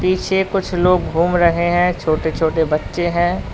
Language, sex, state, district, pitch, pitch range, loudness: Hindi, male, Uttar Pradesh, Lalitpur, 175 Hz, 160-180 Hz, -17 LUFS